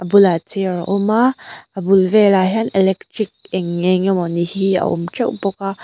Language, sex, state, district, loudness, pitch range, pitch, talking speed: Mizo, female, Mizoram, Aizawl, -17 LUFS, 185-200 Hz, 195 Hz, 205 wpm